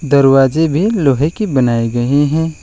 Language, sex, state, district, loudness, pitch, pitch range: Hindi, male, West Bengal, Alipurduar, -13 LUFS, 145 Hz, 135-160 Hz